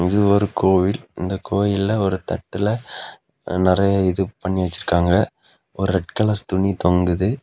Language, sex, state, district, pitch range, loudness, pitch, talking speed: Tamil, male, Tamil Nadu, Kanyakumari, 90-100 Hz, -20 LUFS, 95 Hz, 130 wpm